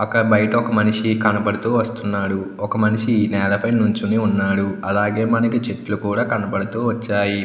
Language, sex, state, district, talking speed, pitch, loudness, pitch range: Telugu, male, Andhra Pradesh, Anantapur, 135 wpm, 105 Hz, -19 LUFS, 100-115 Hz